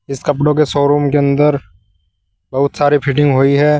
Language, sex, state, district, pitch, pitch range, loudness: Hindi, male, Uttar Pradesh, Saharanpur, 140 Hz, 135-145 Hz, -14 LUFS